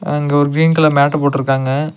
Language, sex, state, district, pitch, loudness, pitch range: Tamil, male, Tamil Nadu, Nilgiris, 145 Hz, -14 LUFS, 140-155 Hz